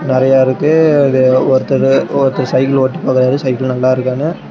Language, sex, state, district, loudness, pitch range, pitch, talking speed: Tamil, male, Tamil Nadu, Namakkal, -12 LUFS, 130-140 Hz, 130 Hz, 135 wpm